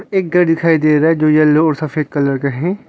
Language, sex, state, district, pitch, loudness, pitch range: Hindi, male, Arunachal Pradesh, Longding, 155 Hz, -14 LUFS, 150-170 Hz